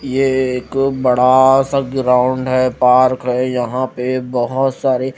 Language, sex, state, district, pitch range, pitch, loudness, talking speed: Hindi, female, Punjab, Fazilka, 125-130 Hz, 130 Hz, -15 LUFS, 140 wpm